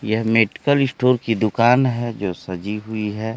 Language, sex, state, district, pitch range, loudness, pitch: Hindi, male, Bihar, Kaimur, 105-125 Hz, -19 LUFS, 115 Hz